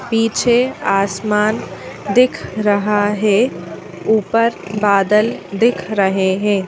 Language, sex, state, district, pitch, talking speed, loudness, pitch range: Hindi, female, Madhya Pradesh, Bhopal, 210 Hz, 90 wpm, -16 LUFS, 200-225 Hz